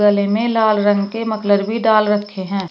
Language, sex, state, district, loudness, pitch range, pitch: Hindi, female, Uttar Pradesh, Shamli, -16 LUFS, 200-220 Hz, 205 Hz